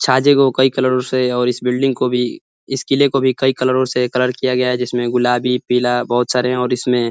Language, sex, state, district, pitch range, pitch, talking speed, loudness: Hindi, male, Uttar Pradesh, Ghazipur, 125-130 Hz, 125 Hz, 255 wpm, -16 LUFS